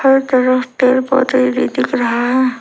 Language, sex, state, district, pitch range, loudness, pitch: Hindi, female, Arunachal Pradesh, Lower Dibang Valley, 255-260 Hz, -14 LUFS, 255 Hz